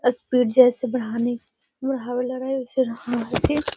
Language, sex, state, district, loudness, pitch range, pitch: Magahi, female, Bihar, Gaya, -22 LUFS, 240-260 Hz, 250 Hz